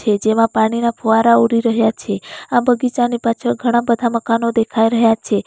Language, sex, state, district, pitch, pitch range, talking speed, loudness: Gujarati, female, Gujarat, Valsad, 230 Hz, 225-235 Hz, 165 wpm, -16 LUFS